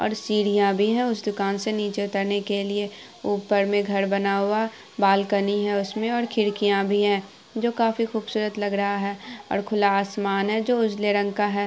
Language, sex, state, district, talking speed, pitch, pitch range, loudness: Hindi, female, Bihar, Araria, 195 wpm, 205 Hz, 200-215 Hz, -24 LUFS